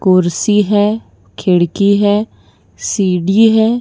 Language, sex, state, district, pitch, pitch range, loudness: Hindi, female, Gujarat, Valsad, 200 Hz, 175-210 Hz, -13 LUFS